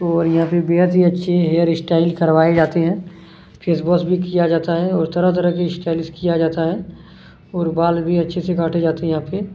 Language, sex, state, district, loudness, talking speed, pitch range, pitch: Hindi, male, Chhattisgarh, Kabirdham, -17 LUFS, 215 wpm, 165-175 Hz, 170 Hz